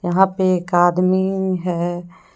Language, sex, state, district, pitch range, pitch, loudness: Hindi, female, Jharkhand, Deoghar, 175-190 Hz, 185 Hz, -18 LUFS